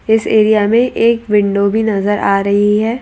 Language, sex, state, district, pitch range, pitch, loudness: Hindi, female, Madhya Pradesh, Bhopal, 205-220 Hz, 210 Hz, -13 LUFS